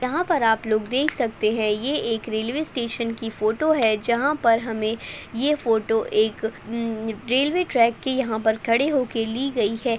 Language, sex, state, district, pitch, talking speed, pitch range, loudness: Hindi, female, Uttar Pradesh, Deoria, 230 Hz, 170 wpm, 220-265 Hz, -23 LUFS